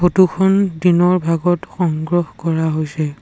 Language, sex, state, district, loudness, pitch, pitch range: Assamese, male, Assam, Sonitpur, -16 LUFS, 175 Hz, 160-180 Hz